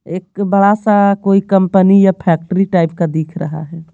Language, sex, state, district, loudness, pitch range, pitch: Hindi, female, Bihar, Patna, -13 LUFS, 170-200 Hz, 190 Hz